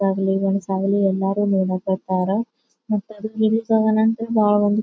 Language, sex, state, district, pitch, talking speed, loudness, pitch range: Kannada, female, Karnataka, Bijapur, 205 Hz, 100 wpm, -20 LUFS, 195-220 Hz